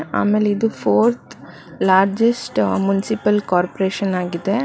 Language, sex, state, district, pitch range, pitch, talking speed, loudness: Kannada, female, Karnataka, Bangalore, 190-225 Hz, 200 Hz, 90 wpm, -18 LUFS